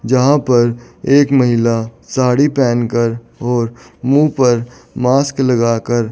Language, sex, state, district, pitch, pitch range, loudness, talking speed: Hindi, male, Chandigarh, Chandigarh, 120 Hz, 120-130 Hz, -14 LUFS, 125 wpm